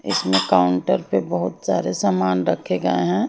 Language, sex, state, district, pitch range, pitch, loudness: Hindi, female, Haryana, Jhajjar, 90-95 Hz, 90 Hz, -20 LUFS